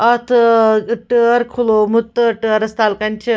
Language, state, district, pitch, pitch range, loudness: Kashmiri, Punjab, Kapurthala, 230 Hz, 220-235 Hz, -14 LUFS